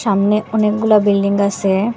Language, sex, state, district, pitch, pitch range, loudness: Bengali, female, Assam, Hailakandi, 205 Hz, 200-215 Hz, -15 LUFS